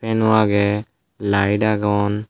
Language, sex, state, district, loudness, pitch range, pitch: Chakma, male, Tripura, Dhalai, -18 LUFS, 100-110 Hz, 105 Hz